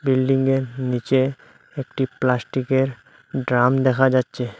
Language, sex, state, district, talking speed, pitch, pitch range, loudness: Bengali, male, Assam, Hailakandi, 90 wpm, 130 Hz, 125-135 Hz, -21 LUFS